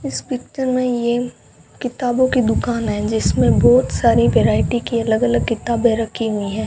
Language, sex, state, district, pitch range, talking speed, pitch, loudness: Hindi, female, Rajasthan, Bikaner, 225-250 Hz, 170 wpm, 240 Hz, -17 LUFS